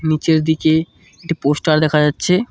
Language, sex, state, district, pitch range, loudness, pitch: Bengali, male, West Bengal, Cooch Behar, 155-165 Hz, -16 LUFS, 155 Hz